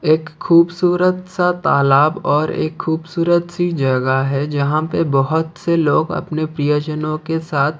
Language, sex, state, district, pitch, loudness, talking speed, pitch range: Hindi, male, Odisha, Khordha, 160 Hz, -17 LUFS, 145 wpm, 145-170 Hz